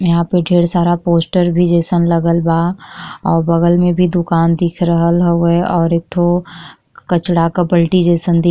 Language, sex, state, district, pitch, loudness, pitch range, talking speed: Bhojpuri, female, Uttar Pradesh, Gorakhpur, 175 Hz, -13 LUFS, 170-175 Hz, 175 wpm